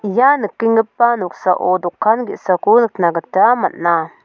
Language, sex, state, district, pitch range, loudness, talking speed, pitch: Garo, female, Meghalaya, South Garo Hills, 175-230 Hz, -15 LUFS, 115 wpm, 195 Hz